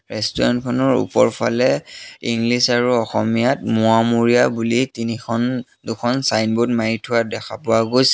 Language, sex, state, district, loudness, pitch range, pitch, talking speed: Assamese, male, Assam, Sonitpur, -18 LUFS, 115-120 Hz, 115 Hz, 110 wpm